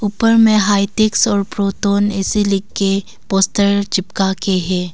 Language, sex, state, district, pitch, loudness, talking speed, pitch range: Hindi, female, Arunachal Pradesh, Longding, 200 Hz, -15 LUFS, 110 wpm, 195-205 Hz